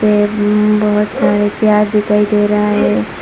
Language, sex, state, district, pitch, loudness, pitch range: Hindi, female, Assam, Hailakandi, 210 Hz, -13 LUFS, 205-210 Hz